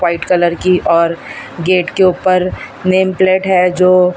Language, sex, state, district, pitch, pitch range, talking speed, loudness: Hindi, female, Maharashtra, Mumbai Suburban, 180 Hz, 175-185 Hz, 160 wpm, -13 LUFS